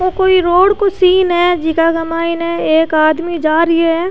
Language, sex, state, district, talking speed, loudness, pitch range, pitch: Rajasthani, female, Rajasthan, Churu, 205 wpm, -12 LUFS, 330-365 Hz, 335 Hz